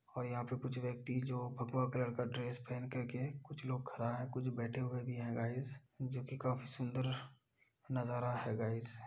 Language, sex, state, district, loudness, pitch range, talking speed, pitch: Hindi, male, Uttar Pradesh, Budaun, -41 LUFS, 120-130 Hz, 210 wpm, 125 Hz